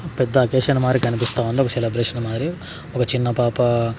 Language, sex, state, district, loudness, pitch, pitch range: Telugu, male, Andhra Pradesh, Sri Satya Sai, -20 LUFS, 125 Hz, 120-130 Hz